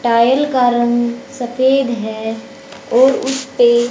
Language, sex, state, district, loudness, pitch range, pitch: Hindi, female, Haryana, Rohtak, -15 LUFS, 235-265 Hz, 245 Hz